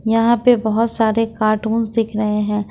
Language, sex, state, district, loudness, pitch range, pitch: Hindi, female, Jharkhand, Ranchi, -17 LUFS, 215-230 Hz, 225 Hz